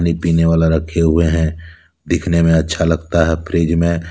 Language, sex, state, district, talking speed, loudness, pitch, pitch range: Hindi, male, Jharkhand, Deoghar, 175 wpm, -15 LUFS, 80 Hz, 80-85 Hz